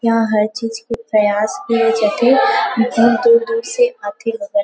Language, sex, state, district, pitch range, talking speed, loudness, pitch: Chhattisgarhi, female, Chhattisgarh, Rajnandgaon, 220-305 Hz, 170 wpm, -15 LUFS, 230 Hz